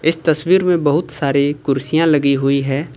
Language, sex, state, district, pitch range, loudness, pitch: Hindi, male, Jharkhand, Ranchi, 140-165 Hz, -16 LUFS, 145 Hz